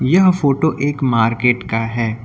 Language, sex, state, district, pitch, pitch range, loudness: Hindi, male, Uttar Pradesh, Lucknow, 125 Hz, 115-145 Hz, -16 LUFS